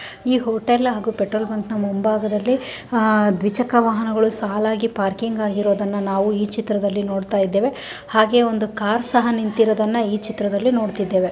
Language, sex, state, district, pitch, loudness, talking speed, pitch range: Kannada, female, Karnataka, Mysore, 215 Hz, -20 LUFS, 125 wpm, 205-225 Hz